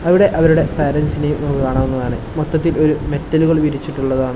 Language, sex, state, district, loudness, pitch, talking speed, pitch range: Malayalam, male, Kerala, Kasaragod, -16 LUFS, 150 Hz, 125 wpm, 140-160 Hz